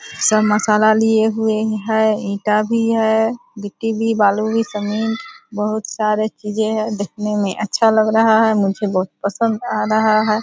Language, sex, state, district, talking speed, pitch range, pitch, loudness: Hindi, female, Bihar, Purnia, 170 wpm, 210-220 Hz, 215 Hz, -17 LUFS